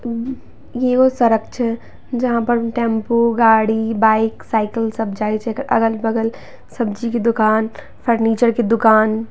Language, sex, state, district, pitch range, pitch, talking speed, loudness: Maithili, female, Bihar, Samastipur, 220-235 Hz, 225 Hz, 115 wpm, -17 LUFS